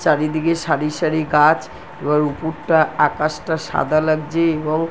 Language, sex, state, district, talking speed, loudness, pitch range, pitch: Bengali, female, West Bengal, North 24 Parganas, 120 wpm, -18 LUFS, 150-160 Hz, 155 Hz